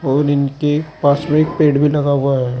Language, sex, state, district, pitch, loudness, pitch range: Hindi, male, Uttar Pradesh, Saharanpur, 145 Hz, -15 LUFS, 140-150 Hz